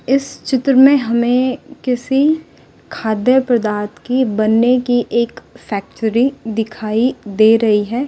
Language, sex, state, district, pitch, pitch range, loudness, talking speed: Hindi, female, Delhi, New Delhi, 240 Hz, 220-260 Hz, -15 LUFS, 120 wpm